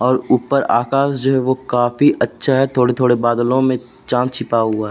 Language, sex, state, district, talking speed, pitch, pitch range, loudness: Hindi, male, Uttar Pradesh, Jalaun, 195 wpm, 125 Hz, 120-135 Hz, -16 LUFS